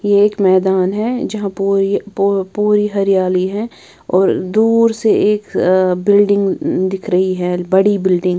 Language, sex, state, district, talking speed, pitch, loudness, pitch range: Hindi, female, Bihar, Patna, 155 wpm, 195 Hz, -15 LUFS, 185-210 Hz